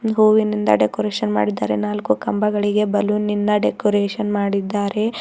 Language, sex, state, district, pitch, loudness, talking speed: Kannada, female, Karnataka, Bidar, 205 Hz, -19 LUFS, 105 wpm